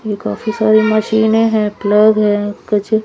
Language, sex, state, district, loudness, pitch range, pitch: Hindi, female, Haryana, Charkhi Dadri, -14 LUFS, 210-220 Hz, 215 Hz